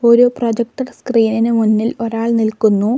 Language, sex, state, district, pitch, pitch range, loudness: Malayalam, female, Kerala, Kollam, 230 Hz, 220-235 Hz, -15 LUFS